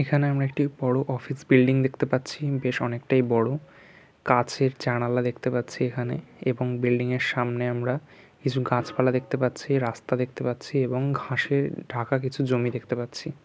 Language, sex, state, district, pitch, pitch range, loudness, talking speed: Bengali, male, West Bengal, Kolkata, 130 Hz, 125-140 Hz, -26 LUFS, 150 wpm